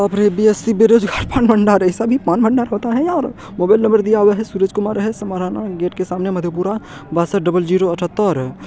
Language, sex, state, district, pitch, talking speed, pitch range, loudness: Hindi, male, Bihar, Madhepura, 205 Hz, 210 wpm, 180-220 Hz, -16 LUFS